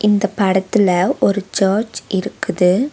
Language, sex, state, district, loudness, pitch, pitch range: Tamil, female, Tamil Nadu, Nilgiris, -17 LUFS, 200 Hz, 190-210 Hz